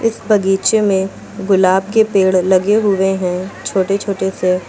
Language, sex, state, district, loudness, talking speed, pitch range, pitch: Hindi, female, Uttar Pradesh, Lucknow, -15 LUFS, 155 wpm, 190-205 Hz, 195 Hz